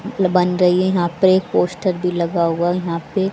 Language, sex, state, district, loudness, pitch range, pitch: Hindi, female, Haryana, Jhajjar, -18 LUFS, 175-185 Hz, 180 Hz